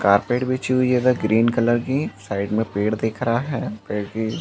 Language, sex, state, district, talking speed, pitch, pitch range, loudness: Hindi, male, Chhattisgarh, Balrampur, 230 wpm, 115 Hz, 105-125 Hz, -21 LUFS